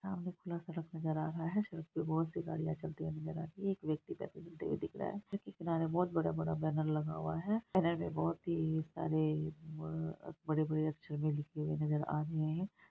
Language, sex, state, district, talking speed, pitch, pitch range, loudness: Hindi, female, Bihar, Araria, 225 wpm, 155 Hz, 150-170 Hz, -38 LUFS